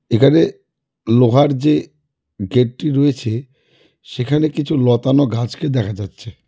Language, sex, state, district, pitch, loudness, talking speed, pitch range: Bengali, male, West Bengal, Cooch Behar, 130 Hz, -16 LUFS, 110 wpm, 115-145 Hz